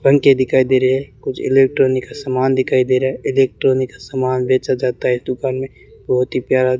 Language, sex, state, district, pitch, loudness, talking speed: Hindi, male, Rajasthan, Bikaner, 130 Hz, -17 LUFS, 220 wpm